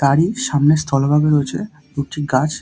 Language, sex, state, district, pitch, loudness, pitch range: Bengali, male, West Bengal, Dakshin Dinajpur, 150 Hz, -17 LUFS, 140-155 Hz